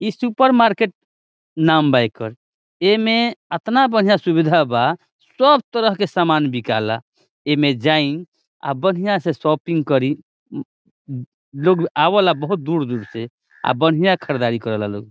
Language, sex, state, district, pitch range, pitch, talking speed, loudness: Bhojpuri, male, Bihar, Saran, 130-200 Hz, 160 Hz, 150 wpm, -18 LUFS